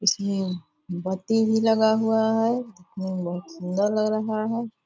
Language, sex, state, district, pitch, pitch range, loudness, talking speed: Hindi, female, Bihar, Purnia, 215 Hz, 185-220 Hz, -24 LUFS, 160 wpm